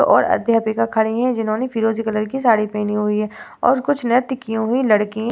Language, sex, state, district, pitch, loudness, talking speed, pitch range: Hindi, female, Uttar Pradesh, Varanasi, 225 Hz, -19 LUFS, 215 wpm, 215-245 Hz